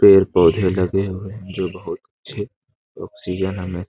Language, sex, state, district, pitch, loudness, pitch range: Hindi, male, Bihar, Jamui, 95 Hz, -20 LUFS, 95-100 Hz